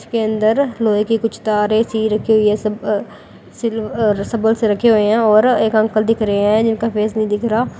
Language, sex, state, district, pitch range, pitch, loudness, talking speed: Hindi, female, Uttar Pradesh, Lalitpur, 210-225 Hz, 220 Hz, -16 LUFS, 225 wpm